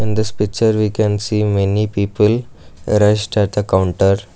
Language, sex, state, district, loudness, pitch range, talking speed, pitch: English, male, Karnataka, Bangalore, -16 LUFS, 100-110 Hz, 165 wpm, 105 Hz